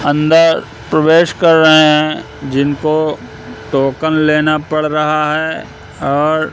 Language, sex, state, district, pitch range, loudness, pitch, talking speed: Hindi, male, Madhya Pradesh, Katni, 150-155 Hz, -12 LUFS, 155 Hz, 110 wpm